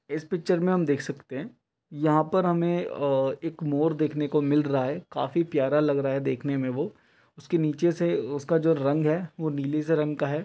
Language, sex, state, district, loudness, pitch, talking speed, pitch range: Hindi, male, Bihar, Jamui, -26 LUFS, 150 Hz, 225 wpm, 145-165 Hz